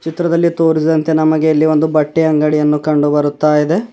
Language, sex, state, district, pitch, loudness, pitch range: Kannada, male, Karnataka, Bidar, 155 Hz, -13 LUFS, 150-160 Hz